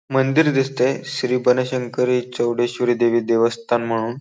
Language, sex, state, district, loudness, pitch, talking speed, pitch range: Marathi, male, Maharashtra, Solapur, -19 LUFS, 125 Hz, 115 wpm, 120-130 Hz